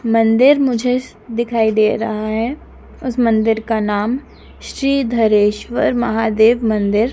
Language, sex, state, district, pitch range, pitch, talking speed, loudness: Hindi, female, Madhya Pradesh, Dhar, 220-245 Hz, 225 Hz, 120 wpm, -16 LUFS